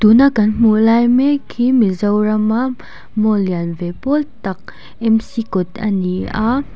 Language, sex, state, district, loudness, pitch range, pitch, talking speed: Mizo, female, Mizoram, Aizawl, -16 LUFS, 205-240 Hz, 220 Hz, 140 wpm